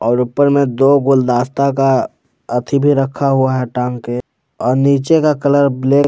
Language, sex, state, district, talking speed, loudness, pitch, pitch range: Hindi, male, Jharkhand, Palamu, 180 wpm, -14 LUFS, 135 Hz, 125-140 Hz